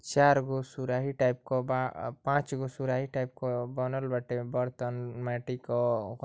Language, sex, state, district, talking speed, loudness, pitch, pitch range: Bhojpuri, male, Uttar Pradesh, Ghazipur, 135 wpm, -31 LUFS, 130 Hz, 125-135 Hz